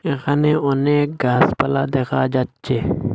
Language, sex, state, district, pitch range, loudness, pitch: Bengali, male, Assam, Hailakandi, 135-150 Hz, -19 LUFS, 145 Hz